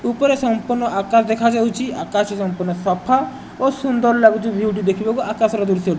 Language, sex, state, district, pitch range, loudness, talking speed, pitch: Odia, male, Odisha, Nuapada, 200-240 Hz, -18 LUFS, 180 wpm, 225 Hz